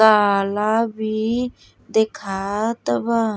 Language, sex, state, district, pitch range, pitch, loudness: Bhojpuri, female, Uttar Pradesh, Gorakhpur, 205-225 Hz, 220 Hz, -21 LUFS